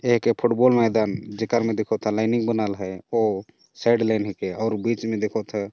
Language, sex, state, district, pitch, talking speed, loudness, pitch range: Chhattisgarhi, male, Chhattisgarh, Jashpur, 110 Hz, 200 wpm, -23 LUFS, 105-115 Hz